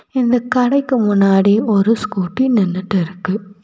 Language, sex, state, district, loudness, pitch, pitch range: Tamil, female, Tamil Nadu, Nilgiris, -15 LUFS, 210 Hz, 195-245 Hz